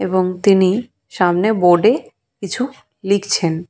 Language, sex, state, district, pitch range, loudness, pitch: Bengali, female, West Bengal, Purulia, 180-215 Hz, -16 LUFS, 190 Hz